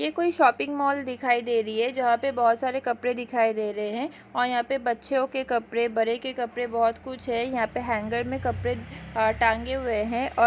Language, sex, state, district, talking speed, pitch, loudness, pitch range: Hindi, female, Chhattisgarh, Rajnandgaon, 220 wpm, 240 Hz, -26 LUFS, 225-260 Hz